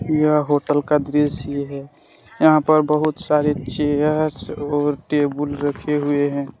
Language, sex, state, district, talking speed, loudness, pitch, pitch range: Hindi, male, Jharkhand, Deoghar, 135 wpm, -19 LUFS, 145 Hz, 145-150 Hz